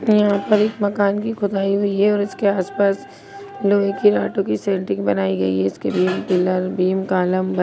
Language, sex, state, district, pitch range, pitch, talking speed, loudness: Hindi, female, Uttar Pradesh, Jyotiba Phule Nagar, 180-205 Hz, 195 Hz, 205 wpm, -19 LUFS